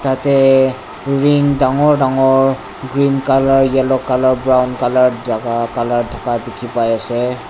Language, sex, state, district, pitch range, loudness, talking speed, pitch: Nagamese, male, Nagaland, Dimapur, 120-135 Hz, -14 LUFS, 110 wpm, 130 Hz